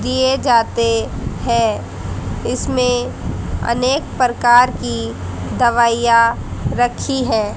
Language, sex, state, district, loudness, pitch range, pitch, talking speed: Hindi, female, Haryana, Jhajjar, -17 LUFS, 225-250 Hz, 235 Hz, 80 wpm